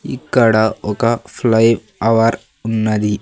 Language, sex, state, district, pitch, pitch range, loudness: Telugu, male, Andhra Pradesh, Sri Satya Sai, 115 Hz, 105-115 Hz, -15 LUFS